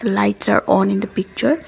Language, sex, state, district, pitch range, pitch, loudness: English, female, Assam, Kamrup Metropolitan, 190-240 Hz, 200 Hz, -18 LUFS